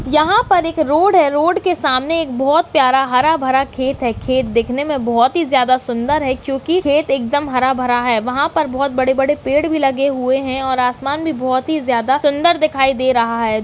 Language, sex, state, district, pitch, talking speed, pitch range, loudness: Hindi, female, Uttarakhand, Uttarkashi, 270 Hz, 220 wpm, 255-305 Hz, -15 LUFS